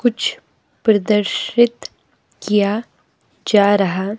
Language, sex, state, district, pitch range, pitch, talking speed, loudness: Hindi, female, Himachal Pradesh, Shimla, 200-225 Hz, 210 Hz, 70 wpm, -17 LUFS